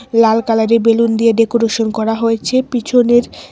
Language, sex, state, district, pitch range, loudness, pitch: Bengali, female, Tripura, West Tripura, 225-240 Hz, -13 LUFS, 230 Hz